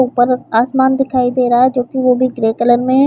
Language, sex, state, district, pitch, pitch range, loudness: Hindi, female, Chhattisgarh, Bilaspur, 250 Hz, 245-260 Hz, -14 LUFS